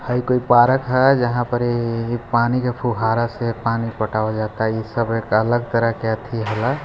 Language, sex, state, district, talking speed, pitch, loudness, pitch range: Hindi, male, Bihar, Gopalganj, 195 wpm, 120 Hz, -19 LUFS, 115-120 Hz